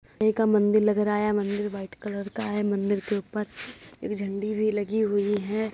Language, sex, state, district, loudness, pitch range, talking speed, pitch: Hindi, female, Uttar Pradesh, Budaun, -26 LUFS, 205-215 Hz, 200 wpm, 210 Hz